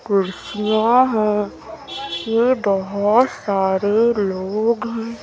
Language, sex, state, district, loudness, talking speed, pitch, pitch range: Hindi, female, Madhya Pradesh, Umaria, -19 LUFS, 80 wpm, 215 Hz, 200-230 Hz